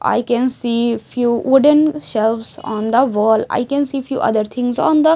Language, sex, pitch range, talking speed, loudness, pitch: English, female, 225-275 Hz, 200 wpm, -16 LUFS, 245 Hz